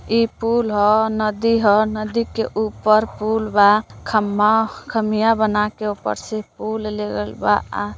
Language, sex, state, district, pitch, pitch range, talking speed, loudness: Bhojpuri, female, Uttar Pradesh, Deoria, 215 Hz, 210-220 Hz, 145 wpm, -19 LUFS